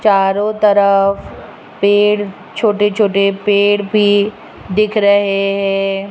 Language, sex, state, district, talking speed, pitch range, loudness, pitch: Hindi, female, Rajasthan, Jaipur, 100 wpm, 195-210 Hz, -13 LUFS, 205 Hz